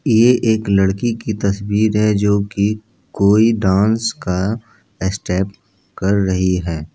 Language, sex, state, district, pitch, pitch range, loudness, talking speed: Hindi, male, Bihar, Jamui, 100 Hz, 95-110 Hz, -17 LUFS, 140 wpm